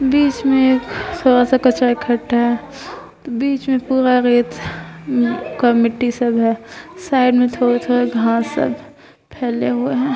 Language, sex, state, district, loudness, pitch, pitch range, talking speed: Hindi, female, Bihar, Vaishali, -16 LUFS, 250 Hz, 240-270 Hz, 130 wpm